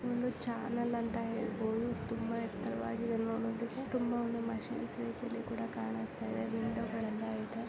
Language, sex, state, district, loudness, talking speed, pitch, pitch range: Kannada, female, Karnataka, Chamarajanagar, -38 LUFS, 135 wpm, 230 Hz, 225-235 Hz